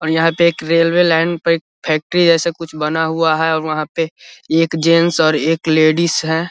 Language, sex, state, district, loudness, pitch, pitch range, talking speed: Hindi, male, Bihar, Vaishali, -15 LUFS, 165 Hz, 160-165 Hz, 210 wpm